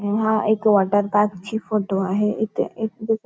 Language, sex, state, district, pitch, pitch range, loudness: Marathi, female, Maharashtra, Nagpur, 215 Hz, 205-220 Hz, -21 LUFS